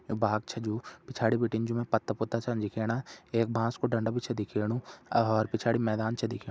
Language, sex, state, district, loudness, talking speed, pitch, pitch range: Hindi, male, Uttarakhand, Tehri Garhwal, -31 LUFS, 210 wpm, 115 Hz, 110-115 Hz